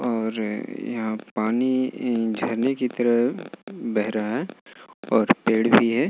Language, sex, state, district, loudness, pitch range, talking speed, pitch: Hindi, male, Bihar, Gaya, -23 LUFS, 110-120 Hz, 145 wpm, 115 Hz